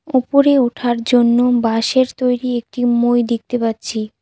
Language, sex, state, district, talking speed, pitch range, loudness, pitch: Bengali, female, West Bengal, Cooch Behar, 130 wpm, 235-250 Hz, -16 LUFS, 240 Hz